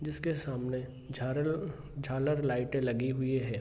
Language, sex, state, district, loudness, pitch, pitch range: Hindi, male, Bihar, East Champaran, -34 LUFS, 130 Hz, 130-150 Hz